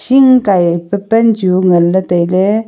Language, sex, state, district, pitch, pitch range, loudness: Wancho, female, Arunachal Pradesh, Longding, 190 Hz, 180-225 Hz, -11 LUFS